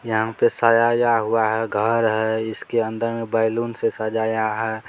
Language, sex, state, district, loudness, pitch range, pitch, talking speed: Maithili, male, Bihar, Supaul, -21 LUFS, 110-115 Hz, 110 Hz, 170 wpm